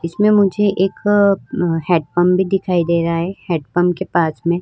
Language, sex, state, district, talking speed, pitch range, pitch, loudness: Hindi, female, Uttar Pradesh, Varanasi, 180 wpm, 170-195 Hz, 175 Hz, -16 LUFS